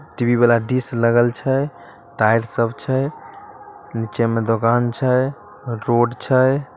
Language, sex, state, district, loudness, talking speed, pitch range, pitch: Magahi, male, Bihar, Samastipur, -19 LUFS, 125 wpm, 115-135 Hz, 120 Hz